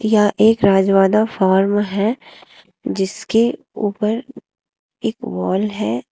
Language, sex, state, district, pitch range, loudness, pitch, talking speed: Hindi, female, Uttar Pradesh, Shamli, 195-220 Hz, -17 LUFS, 205 Hz, 100 wpm